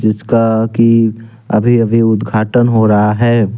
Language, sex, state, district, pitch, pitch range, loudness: Hindi, male, Jharkhand, Deoghar, 115 Hz, 110-115 Hz, -12 LUFS